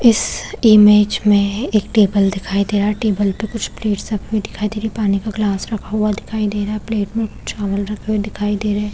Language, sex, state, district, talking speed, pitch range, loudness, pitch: Hindi, female, Chhattisgarh, Balrampur, 260 wpm, 205-215 Hz, -17 LUFS, 210 Hz